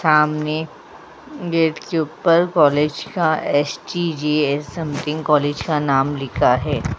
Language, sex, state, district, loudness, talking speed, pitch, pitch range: Hindi, female, Uttar Pradesh, Jyotiba Phule Nagar, -19 LUFS, 120 wpm, 150 Hz, 145-160 Hz